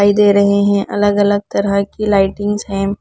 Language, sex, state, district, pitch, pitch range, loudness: Hindi, female, Punjab, Pathankot, 200 Hz, 200-205 Hz, -14 LUFS